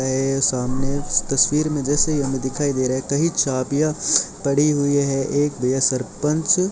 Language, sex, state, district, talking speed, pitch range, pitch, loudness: Hindi, male, Rajasthan, Bikaner, 185 wpm, 135-150 Hz, 140 Hz, -20 LUFS